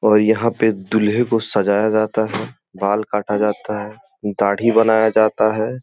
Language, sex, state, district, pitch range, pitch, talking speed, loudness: Hindi, male, Uttar Pradesh, Gorakhpur, 105-110 Hz, 110 Hz, 165 wpm, -18 LUFS